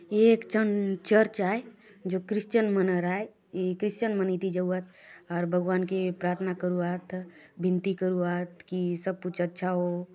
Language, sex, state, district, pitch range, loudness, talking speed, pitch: Halbi, female, Chhattisgarh, Bastar, 180-205 Hz, -28 LUFS, 155 wpm, 185 Hz